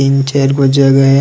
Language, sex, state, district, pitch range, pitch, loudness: Sadri, male, Chhattisgarh, Jashpur, 135-140 Hz, 135 Hz, -10 LUFS